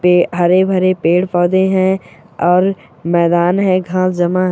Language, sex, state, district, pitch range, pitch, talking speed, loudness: Hindi, female, Chhattisgarh, Bilaspur, 175-185 Hz, 180 Hz, 185 wpm, -14 LUFS